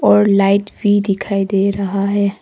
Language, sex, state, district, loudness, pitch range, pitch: Hindi, female, Arunachal Pradesh, Papum Pare, -15 LUFS, 195-205 Hz, 200 Hz